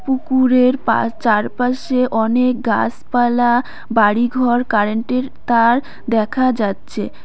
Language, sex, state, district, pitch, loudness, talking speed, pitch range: Bengali, female, West Bengal, Cooch Behar, 245 Hz, -16 LUFS, 75 wpm, 230-255 Hz